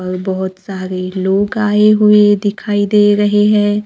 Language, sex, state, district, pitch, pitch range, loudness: Hindi, male, Maharashtra, Gondia, 205 Hz, 190-210 Hz, -13 LUFS